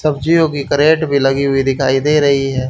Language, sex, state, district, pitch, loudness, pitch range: Hindi, male, Haryana, Rohtak, 140 Hz, -14 LUFS, 135-150 Hz